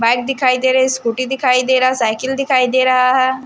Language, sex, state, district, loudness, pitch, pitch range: Hindi, female, Haryana, Charkhi Dadri, -15 LUFS, 255 Hz, 255-260 Hz